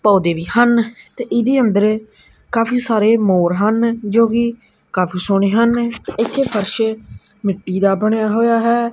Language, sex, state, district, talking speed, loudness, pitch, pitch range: Punjabi, male, Punjab, Kapurthala, 140 wpm, -16 LUFS, 220 Hz, 205-235 Hz